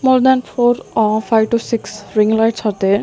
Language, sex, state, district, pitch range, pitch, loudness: English, female, Maharashtra, Gondia, 215-245 Hz, 225 Hz, -16 LUFS